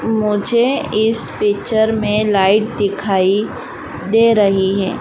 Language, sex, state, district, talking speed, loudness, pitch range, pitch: Hindi, female, Madhya Pradesh, Dhar, 110 wpm, -15 LUFS, 200-220 Hz, 210 Hz